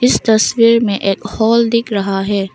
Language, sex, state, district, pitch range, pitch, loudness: Hindi, female, Arunachal Pradesh, Longding, 200-230 Hz, 220 Hz, -13 LUFS